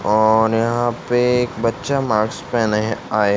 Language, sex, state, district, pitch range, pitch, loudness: Hindi, male, Uttar Pradesh, Ghazipur, 105-120 Hz, 115 Hz, -18 LUFS